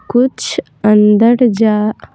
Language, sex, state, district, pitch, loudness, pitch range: Hindi, female, Bihar, Patna, 215 Hz, -12 LUFS, 210-240 Hz